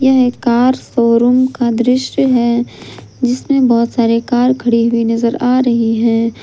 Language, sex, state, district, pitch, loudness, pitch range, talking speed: Hindi, female, Jharkhand, Ranchi, 240 Hz, -13 LUFS, 235-255 Hz, 150 wpm